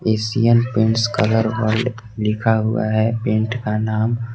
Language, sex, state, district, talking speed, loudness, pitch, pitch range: Hindi, male, Jharkhand, Garhwa, 140 wpm, -19 LUFS, 110 Hz, 110-115 Hz